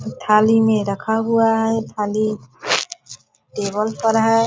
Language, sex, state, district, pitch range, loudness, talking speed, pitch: Hindi, female, Bihar, Purnia, 210-225 Hz, -18 LUFS, 135 wpm, 220 Hz